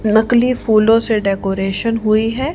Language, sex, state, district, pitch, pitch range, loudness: Hindi, female, Haryana, Charkhi Dadri, 220 Hz, 215-230 Hz, -15 LUFS